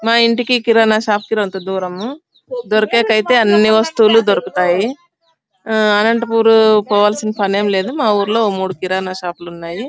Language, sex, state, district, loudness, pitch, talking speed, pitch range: Telugu, female, Andhra Pradesh, Anantapur, -14 LUFS, 215 Hz, 135 wpm, 200-230 Hz